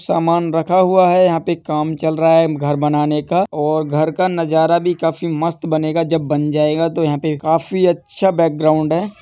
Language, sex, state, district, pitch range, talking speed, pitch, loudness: Hindi, male, Uttar Pradesh, Etah, 155-170 Hz, 200 wpm, 165 Hz, -16 LUFS